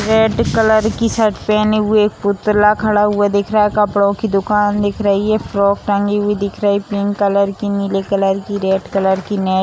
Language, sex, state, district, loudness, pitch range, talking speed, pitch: Hindi, female, Bihar, Samastipur, -15 LUFS, 200-210 Hz, 210 wpm, 205 Hz